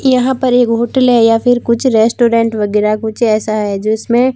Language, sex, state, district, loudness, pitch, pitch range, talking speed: Hindi, female, Rajasthan, Barmer, -12 LUFS, 230 Hz, 220-245 Hz, 195 wpm